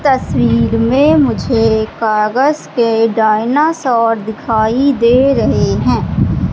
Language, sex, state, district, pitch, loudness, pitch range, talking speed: Hindi, female, Madhya Pradesh, Katni, 230 Hz, -13 LUFS, 220-270 Hz, 90 wpm